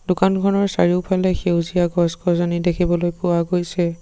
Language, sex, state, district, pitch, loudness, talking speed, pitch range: Assamese, male, Assam, Sonitpur, 175 Hz, -19 LUFS, 120 wpm, 175-185 Hz